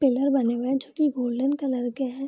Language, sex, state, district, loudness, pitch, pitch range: Hindi, female, Bihar, Madhepura, -25 LUFS, 265 Hz, 250-275 Hz